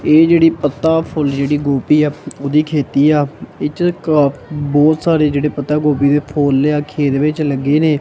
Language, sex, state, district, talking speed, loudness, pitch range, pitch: Punjabi, male, Punjab, Kapurthala, 185 wpm, -14 LUFS, 145-155 Hz, 150 Hz